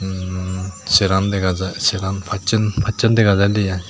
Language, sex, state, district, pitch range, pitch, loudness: Chakma, male, Tripura, Unakoti, 95-105 Hz, 95 Hz, -18 LUFS